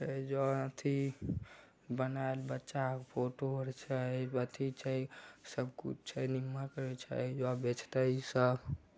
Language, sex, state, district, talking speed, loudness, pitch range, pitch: Maithili, male, Bihar, Begusarai, 145 wpm, -38 LUFS, 125-135 Hz, 130 Hz